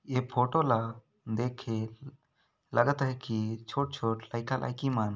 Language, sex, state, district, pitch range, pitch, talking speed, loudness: Sadri, male, Chhattisgarh, Jashpur, 115-135 Hz, 125 Hz, 140 wpm, -32 LUFS